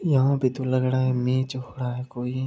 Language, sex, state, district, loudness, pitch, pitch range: Hindi, male, Bihar, Supaul, -25 LUFS, 130 Hz, 125-130 Hz